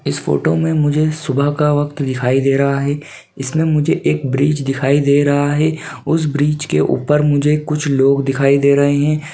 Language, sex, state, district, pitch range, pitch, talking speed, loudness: Hindi, male, Uttarakhand, Uttarkashi, 140-150 Hz, 145 Hz, 195 wpm, -15 LUFS